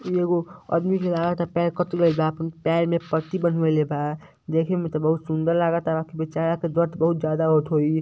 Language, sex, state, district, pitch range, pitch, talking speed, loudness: Hindi, male, Uttar Pradesh, Ghazipur, 160-170 Hz, 165 Hz, 185 wpm, -23 LUFS